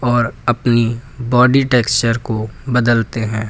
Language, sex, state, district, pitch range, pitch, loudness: Hindi, male, Uttar Pradesh, Lucknow, 115-125 Hz, 120 Hz, -16 LUFS